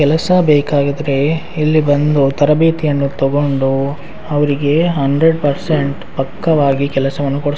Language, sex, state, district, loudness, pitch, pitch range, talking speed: Kannada, male, Karnataka, Raichur, -14 LUFS, 145 Hz, 140-155 Hz, 105 wpm